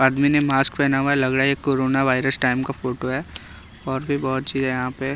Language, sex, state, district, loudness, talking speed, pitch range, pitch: Hindi, male, Bihar, West Champaran, -21 LUFS, 245 wpm, 130-135 Hz, 130 Hz